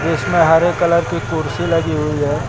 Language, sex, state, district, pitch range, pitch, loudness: Hindi, male, Uttar Pradesh, Lucknow, 150-170 Hz, 160 Hz, -16 LUFS